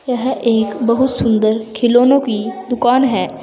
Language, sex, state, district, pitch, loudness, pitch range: Hindi, female, Uttar Pradesh, Saharanpur, 240 Hz, -15 LUFS, 220-250 Hz